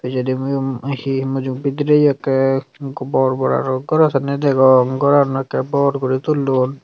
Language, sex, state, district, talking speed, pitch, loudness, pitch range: Chakma, female, Tripura, Unakoti, 140 wpm, 135 Hz, -17 LUFS, 130-140 Hz